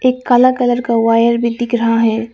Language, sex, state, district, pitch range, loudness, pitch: Hindi, female, Arunachal Pradesh, Lower Dibang Valley, 230-245 Hz, -13 LUFS, 235 Hz